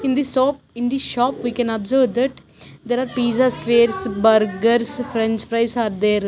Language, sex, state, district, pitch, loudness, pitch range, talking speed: English, female, Chandigarh, Chandigarh, 235 Hz, -19 LUFS, 225-255 Hz, 180 wpm